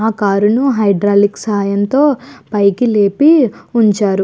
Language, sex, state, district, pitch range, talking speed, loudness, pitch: Telugu, female, Andhra Pradesh, Guntur, 200-245 Hz, 115 wpm, -13 LUFS, 210 Hz